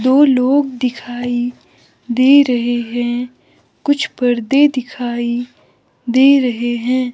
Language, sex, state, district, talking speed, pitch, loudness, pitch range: Hindi, female, Himachal Pradesh, Shimla, 100 wpm, 250 Hz, -15 LUFS, 240-265 Hz